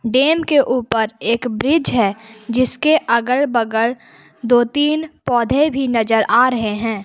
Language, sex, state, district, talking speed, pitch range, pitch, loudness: Hindi, female, Jharkhand, Palamu, 145 wpm, 225-275 Hz, 245 Hz, -16 LUFS